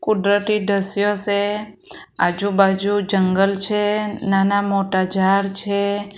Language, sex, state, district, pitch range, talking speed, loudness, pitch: Gujarati, female, Gujarat, Valsad, 195-205 Hz, 95 wpm, -18 LUFS, 200 Hz